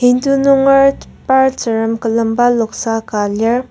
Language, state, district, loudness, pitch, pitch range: Ao, Nagaland, Kohima, -13 LUFS, 240 Hz, 225-265 Hz